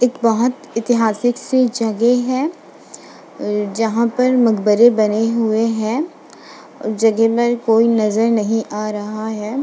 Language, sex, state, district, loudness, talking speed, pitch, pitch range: Hindi, female, Uttar Pradesh, Budaun, -17 LUFS, 125 wpm, 225 Hz, 220-240 Hz